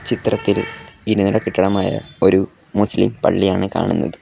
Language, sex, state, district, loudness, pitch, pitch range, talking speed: Malayalam, male, Kerala, Kollam, -18 LUFS, 95 Hz, 95-105 Hz, 115 wpm